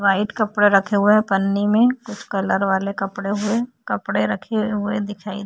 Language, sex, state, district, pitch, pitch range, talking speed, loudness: Hindi, female, Uttar Pradesh, Jyotiba Phule Nagar, 205 Hz, 200-215 Hz, 185 wpm, -20 LUFS